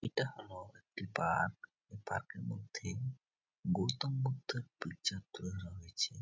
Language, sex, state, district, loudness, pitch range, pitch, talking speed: Bengali, male, West Bengal, Jhargram, -40 LUFS, 95-130 Hz, 120 Hz, 135 wpm